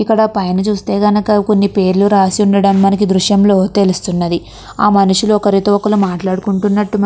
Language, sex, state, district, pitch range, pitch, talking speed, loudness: Telugu, female, Andhra Pradesh, Krishna, 195-210 Hz, 200 Hz, 160 wpm, -12 LUFS